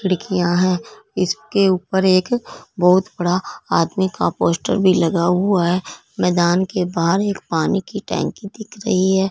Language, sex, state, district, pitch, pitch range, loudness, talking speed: Hindi, female, Punjab, Fazilka, 185 Hz, 180-195 Hz, -18 LUFS, 155 wpm